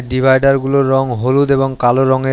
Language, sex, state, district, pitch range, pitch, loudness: Bengali, male, West Bengal, Alipurduar, 130-135 Hz, 135 Hz, -13 LUFS